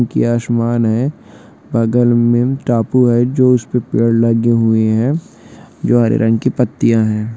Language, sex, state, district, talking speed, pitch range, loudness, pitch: Hindi, male, Jharkhand, Sahebganj, 145 wpm, 115-125 Hz, -14 LUFS, 120 Hz